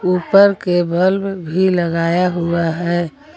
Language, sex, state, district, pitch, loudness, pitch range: Hindi, female, Jharkhand, Garhwa, 180 Hz, -16 LUFS, 170-190 Hz